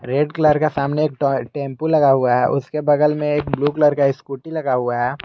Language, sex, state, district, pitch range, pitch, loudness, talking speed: Hindi, male, Jharkhand, Garhwa, 135-150 Hz, 145 Hz, -18 LUFS, 230 wpm